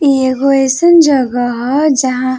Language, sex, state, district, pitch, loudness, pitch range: Bhojpuri, female, Uttar Pradesh, Varanasi, 270 Hz, -11 LUFS, 255-285 Hz